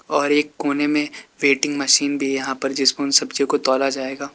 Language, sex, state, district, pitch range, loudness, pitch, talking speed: Hindi, male, Uttar Pradesh, Lalitpur, 135-145 Hz, -19 LUFS, 140 Hz, 180 wpm